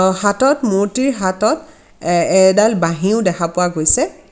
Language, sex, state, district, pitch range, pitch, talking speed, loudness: Assamese, female, Assam, Kamrup Metropolitan, 180-215 Hz, 195 Hz, 140 wpm, -15 LUFS